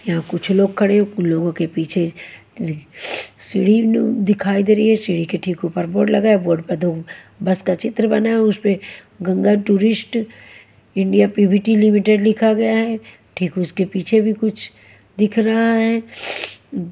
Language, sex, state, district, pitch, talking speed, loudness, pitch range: Hindi, female, Haryana, Jhajjar, 200 Hz, 170 wpm, -17 LUFS, 175-220 Hz